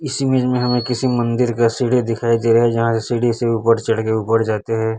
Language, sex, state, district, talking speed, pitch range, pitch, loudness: Hindi, male, Chhattisgarh, Raipur, 265 wpm, 115-125 Hz, 115 Hz, -17 LUFS